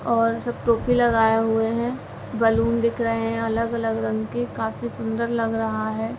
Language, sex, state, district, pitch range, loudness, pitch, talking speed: Hindi, female, Uttar Pradesh, Ghazipur, 220-230 Hz, -23 LUFS, 225 Hz, 175 wpm